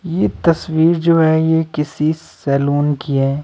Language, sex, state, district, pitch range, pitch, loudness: Hindi, male, Himachal Pradesh, Shimla, 145-160 Hz, 160 Hz, -16 LUFS